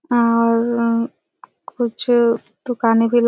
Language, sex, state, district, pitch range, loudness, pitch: Hindi, female, Chhattisgarh, Raigarh, 230-240 Hz, -18 LUFS, 235 Hz